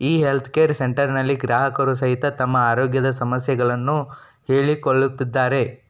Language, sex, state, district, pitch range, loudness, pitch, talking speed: Kannada, male, Karnataka, Dakshina Kannada, 125-140 Hz, -20 LUFS, 135 Hz, 100 wpm